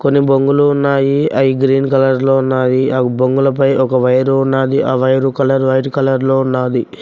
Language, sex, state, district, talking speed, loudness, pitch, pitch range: Telugu, male, Telangana, Mahabubabad, 170 wpm, -13 LUFS, 135 Hz, 130-135 Hz